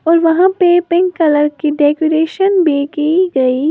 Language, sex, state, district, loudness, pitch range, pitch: Hindi, female, Uttar Pradesh, Lalitpur, -13 LUFS, 295-355 Hz, 320 Hz